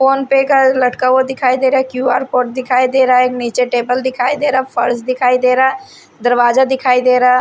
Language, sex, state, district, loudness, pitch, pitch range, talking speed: Hindi, female, Odisha, Sambalpur, -13 LUFS, 255 Hz, 250-265 Hz, 235 wpm